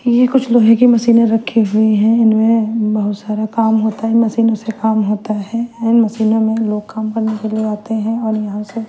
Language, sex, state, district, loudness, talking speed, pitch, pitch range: Hindi, female, Punjab, Fazilka, -14 LUFS, 225 wpm, 220 Hz, 215-230 Hz